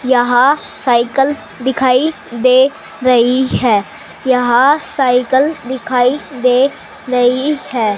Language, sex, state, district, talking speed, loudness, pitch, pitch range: Hindi, female, Haryana, Charkhi Dadri, 90 wpm, -13 LUFS, 255 Hz, 245-270 Hz